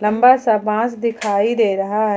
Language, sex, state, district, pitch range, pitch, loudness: Hindi, female, Jharkhand, Ranchi, 210-230 Hz, 215 Hz, -17 LUFS